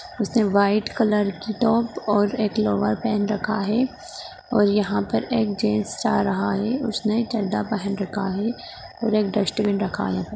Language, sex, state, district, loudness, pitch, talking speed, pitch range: Hindi, female, Bihar, Jahanabad, -23 LUFS, 210 Hz, 170 wpm, 200-225 Hz